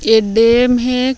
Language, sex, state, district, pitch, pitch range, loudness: Hindi, male, Chhattisgarh, Jashpur, 245 Hz, 225-250 Hz, -12 LUFS